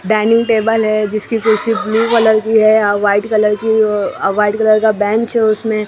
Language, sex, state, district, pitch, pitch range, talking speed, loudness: Hindi, female, Maharashtra, Mumbai Suburban, 215 Hz, 210-225 Hz, 215 wpm, -13 LUFS